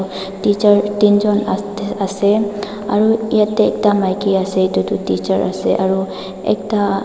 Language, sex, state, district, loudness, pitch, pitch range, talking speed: Nagamese, female, Nagaland, Dimapur, -16 LUFS, 205 Hz, 190-205 Hz, 120 wpm